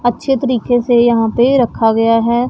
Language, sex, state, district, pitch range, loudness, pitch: Hindi, female, Punjab, Pathankot, 230-250 Hz, -13 LUFS, 240 Hz